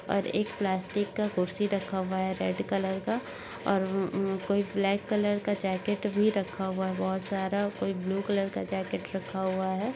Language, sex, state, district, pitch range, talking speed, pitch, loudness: Hindi, female, Uttar Pradesh, Budaun, 190-205 Hz, 200 wpm, 195 Hz, -30 LUFS